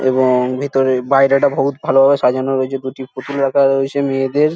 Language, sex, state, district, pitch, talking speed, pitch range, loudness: Bengali, male, West Bengal, Jhargram, 135 Hz, 170 wpm, 130-140 Hz, -15 LUFS